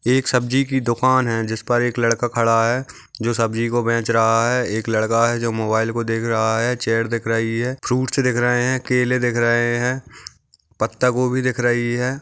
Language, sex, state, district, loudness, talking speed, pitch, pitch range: Hindi, male, Maharashtra, Aurangabad, -19 LUFS, 210 wpm, 120 Hz, 115-125 Hz